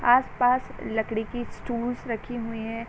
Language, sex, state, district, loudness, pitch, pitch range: Hindi, female, Uttar Pradesh, Varanasi, -27 LUFS, 240 Hz, 225-245 Hz